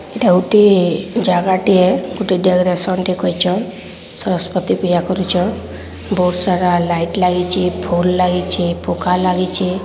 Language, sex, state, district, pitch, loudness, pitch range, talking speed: Odia, female, Odisha, Sambalpur, 180 Hz, -15 LUFS, 180-185 Hz, 115 wpm